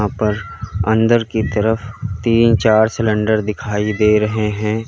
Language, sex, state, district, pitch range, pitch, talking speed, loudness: Hindi, male, Uttar Pradesh, Lalitpur, 105-115 Hz, 110 Hz, 135 wpm, -16 LUFS